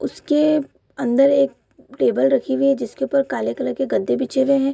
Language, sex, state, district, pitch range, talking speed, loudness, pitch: Hindi, female, Bihar, Bhagalpur, 265-275 Hz, 205 wpm, -19 LUFS, 275 Hz